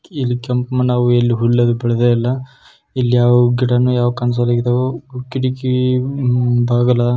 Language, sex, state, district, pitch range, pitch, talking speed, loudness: Kannada, male, Karnataka, Shimoga, 120-125 Hz, 125 Hz, 135 wpm, -16 LUFS